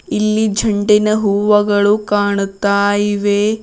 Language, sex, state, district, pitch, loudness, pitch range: Kannada, female, Karnataka, Bidar, 205 Hz, -14 LUFS, 205-210 Hz